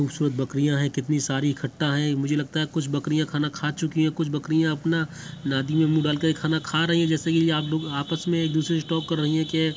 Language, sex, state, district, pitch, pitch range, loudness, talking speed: Hindi, male, Bihar, Muzaffarpur, 155 Hz, 145-160 Hz, -24 LUFS, 260 wpm